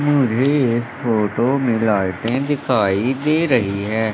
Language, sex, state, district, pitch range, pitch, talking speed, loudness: Hindi, male, Madhya Pradesh, Katni, 110-140 Hz, 120 Hz, 130 wpm, -18 LUFS